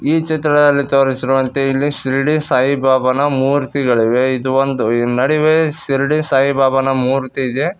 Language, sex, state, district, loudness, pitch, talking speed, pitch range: Kannada, male, Karnataka, Koppal, -15 LUFS, 135 Hz, 125 wpm, 130-145 Hz